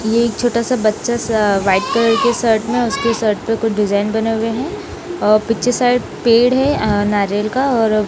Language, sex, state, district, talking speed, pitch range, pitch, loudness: Hindi, female, Punjab, Kapurthala, 210 wpm, 215-240 Hz, 225 Hz, -16 LUFS